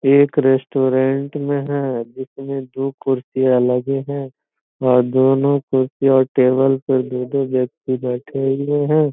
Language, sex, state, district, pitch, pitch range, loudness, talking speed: Hindi, male, Bihar, Gopalganj, 135 Hz, 130-140 Hz, -18 LUFS, 130 wpm